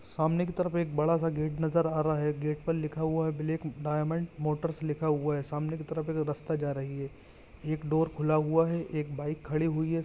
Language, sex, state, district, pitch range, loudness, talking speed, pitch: Hindi, male, Chhattisgarh, Bilaspur, 150-160 Hz, -31 LUFS, 235 wpm, 155 Hz